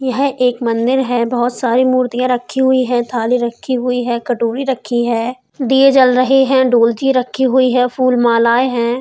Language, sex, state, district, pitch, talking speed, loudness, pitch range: Hindi, female, Uttar Pradesh, Hamirpur, 250 Hz, 185 wpm, -14 LUFS, 240-260 Hz